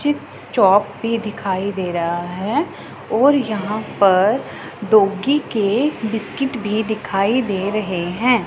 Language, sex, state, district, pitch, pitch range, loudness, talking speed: Hindi, female, Punjab, Pathankot, 210 Hz, 195-230 Hz, -19 LUFS, 125 wpm